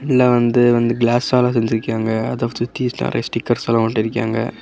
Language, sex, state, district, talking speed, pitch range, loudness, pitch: Tamil, male, Tamil Nadu, Kanyakumari, 130 wpm, 115-120 Hz, -18 LUFS, 120 Hz